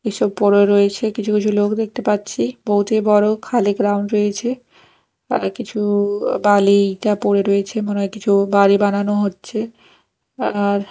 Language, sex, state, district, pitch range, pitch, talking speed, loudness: Bengali, female, Odisha, Nuapada, 200-215 Hz, 205 Hz, 130 wpm, -17 LUFS